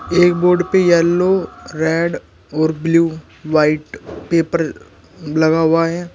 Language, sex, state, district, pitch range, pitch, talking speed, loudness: Hindi, male, Uttar Pradesh, Shamli, 160-175 Hz, 165 Hz, 105 wpm, -16 LUFS